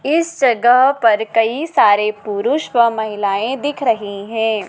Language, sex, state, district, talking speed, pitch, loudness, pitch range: Hindi, female, Madhya Pradesh, Dhar, 140 wpm, 225 Hz, -16 LUFS, 210-270 Hz